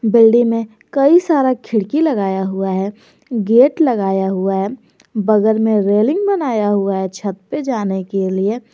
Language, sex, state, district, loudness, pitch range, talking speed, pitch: Hindi, female, Jharkhand, Garhwa, -16 LUFS, 195-250 Hz, 160 wpm, 215 Hz